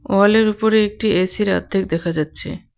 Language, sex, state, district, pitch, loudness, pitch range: Bengali, female, West Bengal, Cooch Behar, 205 Hz, -18 LUFS, 185-215 Hz